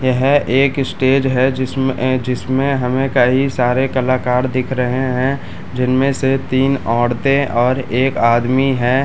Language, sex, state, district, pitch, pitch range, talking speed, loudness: Hindi, male, Bihar, Madhepura, 130 Hz, 125-135 Hz, 145 wpm, -16 LUFS